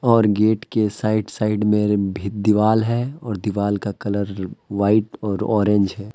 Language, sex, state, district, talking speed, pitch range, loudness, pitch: Hindi, male, Jharkhand, Deoghar, 175 wpm, 100-110 Hz, -20 LUFS, 105 Hz